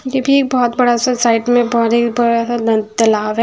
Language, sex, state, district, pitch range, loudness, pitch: Hindi, female, Punjab, Fazilka, 230-245 Hz, -14 LUFS, 235 Hz